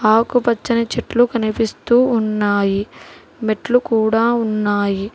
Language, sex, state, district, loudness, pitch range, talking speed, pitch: Telugu, female, Telangana, Hyderabad, -17 LUFS, 215-235 Hz, 80 wpm, 225 Hz